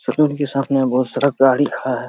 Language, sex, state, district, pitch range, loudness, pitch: Hindi, male, Jharkhand, Sahebganj, 130-145 Hz, -17 LUFS, 135 Hz